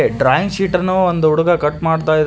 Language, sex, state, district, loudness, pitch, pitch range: Kannada, male, Karnataka, Koppal, -15 LUFS, 165 Hz, 155-185 Hz